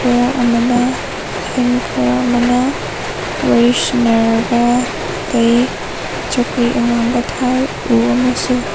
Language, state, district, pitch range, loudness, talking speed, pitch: Manipuri, Manipur, Imphal West, 230-245 Hz, -15 LUFS, 80 wpm, 240 Hz